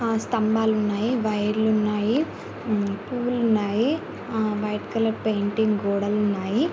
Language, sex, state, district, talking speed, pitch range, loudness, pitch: Telugu, male, Andhra Pradesh, Srikakulam, 125 wpm, 210-225 Hz, -24 LUFS, 215 Hz